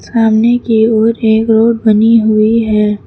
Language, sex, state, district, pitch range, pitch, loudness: Hindi, female, Uttar Pradesh, Lucknow, 220-230 Hz, 225 Hz, -10 LUFS